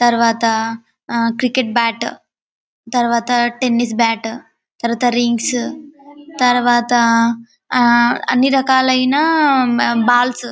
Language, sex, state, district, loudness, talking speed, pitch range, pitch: Telugu, female, Telangana, Karimnagar, -15 LUFS, 85 wpm, 235-255 Hz, 240 Hz